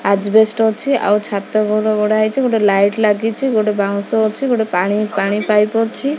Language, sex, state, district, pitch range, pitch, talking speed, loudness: Odia, female, Odisha, Khordha, 205-225 Hz, 215 Hz, 175 wpm, -15 LUFS